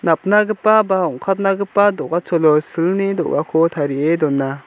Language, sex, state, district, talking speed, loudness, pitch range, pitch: Garo, male, Meghalaya, South Garo Hills, 105 wpm, -17 LUFS, 155-195 Hz, 170 Hz